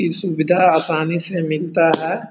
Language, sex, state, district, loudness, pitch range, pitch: Hindi, male, Bihar, East Champaran, -18 LUFS, 160-180 Hz, 170 Hz